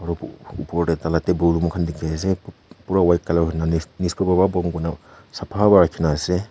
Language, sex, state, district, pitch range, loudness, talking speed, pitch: Nagamese, female, Nagaland, Kohima, 80-90 Hz, -20 LUFS, 140 wpm, 85 Hz